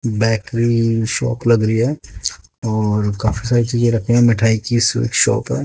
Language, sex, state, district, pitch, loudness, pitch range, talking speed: Hindi, male, Haryana, Jhajjar, 115 Hz, -17 LUFS, 110-120 Hz, 160 wpm